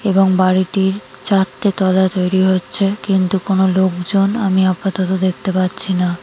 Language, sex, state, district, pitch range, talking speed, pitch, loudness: Bengali, female, West Bengal, Jalpaiguri, 185-195 Hz, 135 wpm, 190 Hz, -16 LUFS